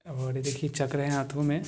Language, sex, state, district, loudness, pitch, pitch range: Maithili, male, Bihar, Supaul, -30 LUFS, 140 Hz, 135-145 Hz